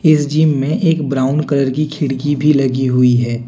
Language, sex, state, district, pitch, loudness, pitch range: Hindi, male, Jharkhand, Deoghar, 145 Hz, -15 LUFS, 130-150 Hz